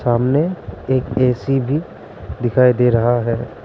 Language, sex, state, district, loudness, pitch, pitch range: Hindi, male, Arunachal Pradesh, Lower Dibang Valley, -17 LUFS, 125 Hz, 120-135 Hz